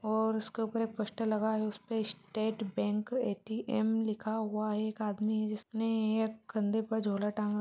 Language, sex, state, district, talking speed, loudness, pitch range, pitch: Hindi, female, Chhattisgarh, Balrampur, 180 wpm, -34 LUFS, 215-220 Hz, 220 Hz